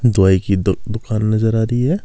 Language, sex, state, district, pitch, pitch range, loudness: Hindi, male, Himachal Pradesh, Shimla, 110 Hz, 100-115 Hz, -17 LUFS